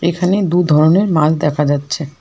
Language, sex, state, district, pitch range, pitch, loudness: Bengali, female, West Bengal, Alipurduar, 150-180 Hz, 155 Hz, -14 LUFS